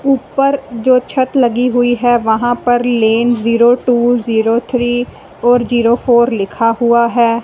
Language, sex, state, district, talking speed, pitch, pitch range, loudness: Hindi, female, Punjab, Fazilka, 155 wpm, 240 Hz, 235-245 Hz, -13 LUFS